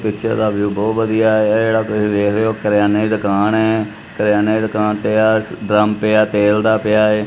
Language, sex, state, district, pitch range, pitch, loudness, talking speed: Punjabi, male, Punjab, Kapurthala, 105-110 Hz, 105 Hz, -15 LUFS, 205 wpm